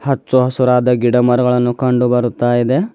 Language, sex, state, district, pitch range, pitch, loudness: Kannada, male, Karnataka, Bidar, 120-130 Hz, 125 Hz, -14 LUFS